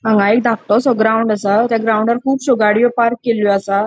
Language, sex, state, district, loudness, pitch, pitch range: Konkani, female, Goa, North and South Goa, -14 LUFS, 225 Hz, 210-235 Hz